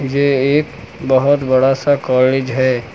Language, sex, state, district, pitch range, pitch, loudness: Hindi, male, Uttar Pradesh, Lucknow, 130-140 Hz, 135 Hz, -14 LUFS